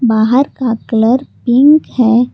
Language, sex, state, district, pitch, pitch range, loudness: Hindi, female, Jharkhand, Garhwa, 245 Hz, 230-265 Hz, -12 LUFS